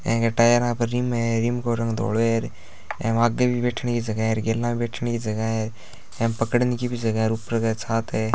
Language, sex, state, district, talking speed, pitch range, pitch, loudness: Hindi, male, Rajasthan, Churu, 245 wpm, 115-120 Hz, 115 Hz, -23 LUFS